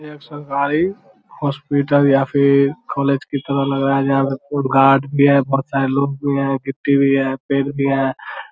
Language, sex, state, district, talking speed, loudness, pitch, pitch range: Hindi, male, Bihar, Vaishali, 230 wpm, -17 LUFS, 140 Hz, 135-140 Hz